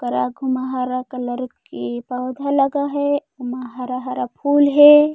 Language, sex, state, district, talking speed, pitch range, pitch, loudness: Chhattisgarhi, female, Chhattisgarh, Raigarh, 150 wpm, 250-285 Hz, 255 Hz, -19 LUFS